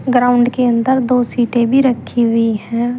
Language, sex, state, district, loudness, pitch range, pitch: Hindi, female, Uttar Pradesh, Saharanpur, -14 LUFS, 235-250 Hz, 245 Hz